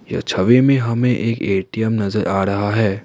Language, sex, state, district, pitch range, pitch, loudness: Hindi, male, Assam, Kamrup Metropolitan, 100-115 Hz, 110 Hz, -17 LUFS